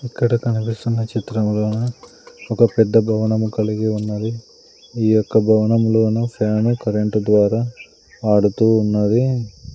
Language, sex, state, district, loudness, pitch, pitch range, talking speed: Telugu, male, Andhra Pradesh, Sri Satya Sai, -18 LUFS, 110 Hz, 105-115 Hz, 100 wpm